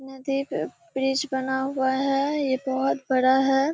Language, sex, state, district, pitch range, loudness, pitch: Hindi, female, Bihar, Kishanganj, 265-275 Hz, -24 LUFS, 270 Hz